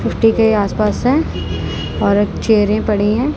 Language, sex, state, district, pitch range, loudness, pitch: Hindi, male, Punjab, Kapurthala, 205-225 Hz, -15 LUFS, 215 Hz